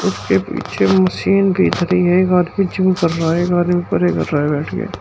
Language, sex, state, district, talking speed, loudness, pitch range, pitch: Hindi, male, Uttar Pradesh, Shamli, 240 wpm, -16 LUFS, 175-185 Hz, 180 Hz